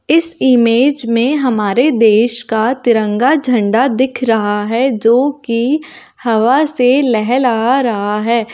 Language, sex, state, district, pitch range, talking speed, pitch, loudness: Hindi, female, Delhi, New Delhi, 225-260 Hz, 135 wpm, 240 Hz, -13 LUFS